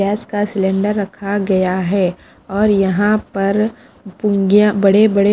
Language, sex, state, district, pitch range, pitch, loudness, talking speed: Hindi, female, Punjab, Fazilka, 195-210 Hz, 200 Hz, -16 LUFS, 145 wpm